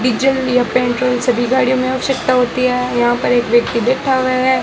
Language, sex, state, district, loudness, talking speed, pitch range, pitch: Hindi, male, Rajasthan, Bikaner, -15 LUFS, 205 wpm, 245-255 Hz, 250 Hz